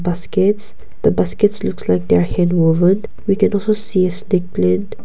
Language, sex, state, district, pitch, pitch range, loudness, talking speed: English, female, Nagaland, Kohima, 185 Hz, 165-205 Hz, -17 LUFS, 165 wpm